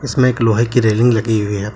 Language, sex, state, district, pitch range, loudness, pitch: Hindi, male, Jharkhand, Deoghar, 110-120 Hz, -15 LUFS, 115 Hz